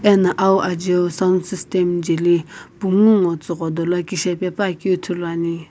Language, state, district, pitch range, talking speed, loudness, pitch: Sumi, Nagaland, Kohima, 170-190 Hz, 135 wpm, -19 LUFS, 180 Hz